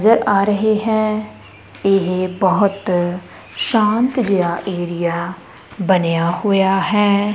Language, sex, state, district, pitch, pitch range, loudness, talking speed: Punjabi, male, Punjab, Kapurthala, 195 Hz, 175-210 Hz, -17 LUFS, 100 wpm